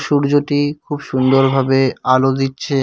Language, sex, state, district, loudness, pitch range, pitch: Bengali, male, West Bengal, Cooch Behar, -16 LUFS, 135-145 Hz, 135 Hz